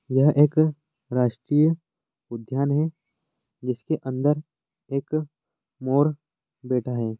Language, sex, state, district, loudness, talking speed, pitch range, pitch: Hindi, male, Jharkhand, Jamtara, -24 LUFS, 90 wpm, 125-155 Hz, 140 Hz